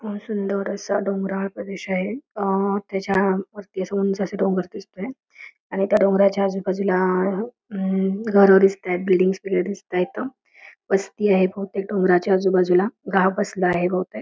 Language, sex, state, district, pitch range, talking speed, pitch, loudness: Marathi, female, Karnataka, Belgaum, 190-200 Hz, 100 wpm, 195 Hz, -21 LUFS